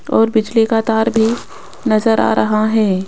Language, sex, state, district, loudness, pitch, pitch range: Hindi, female, Rajasthan, Jaipur, -15 LUFS, 220 Hz, 215-225 Hz